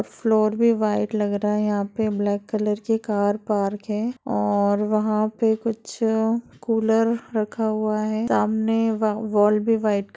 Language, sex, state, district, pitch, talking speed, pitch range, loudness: Hindi, female, Bihar, Darbhanga, 215 Hz, 170 wpm, 210-225 Hz, -22 LUFS